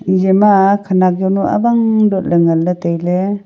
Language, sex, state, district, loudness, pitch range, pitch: Wancho, female, Arunachal Pradesh, Longding, -13 LUFS, 180-205 Hz, 190 Hz